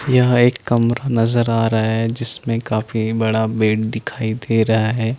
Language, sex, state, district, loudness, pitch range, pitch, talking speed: Hindi, male, Chandigarh, Chandigarh, -18 LUFS, 110-120 Hz, 115 Hz, 160 wpm